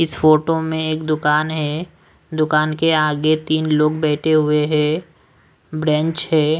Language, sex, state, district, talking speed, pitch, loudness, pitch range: Hindi, male, Odisha, Sambalpur, 145 wpm, 155 Hz, -18 LUFS, 150-160 Hz